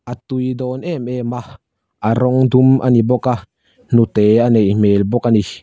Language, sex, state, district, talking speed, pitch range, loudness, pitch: Mizo, male, Mizoram, Aizawl, 215 wpm, 105-130 Hz, -15 LUFS, 120 Hz